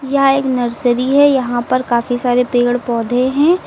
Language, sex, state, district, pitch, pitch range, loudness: Hindi, female, Uttar Pradesh, Lucknow, 250 Hz, 245-270 Hz, -14 LUFS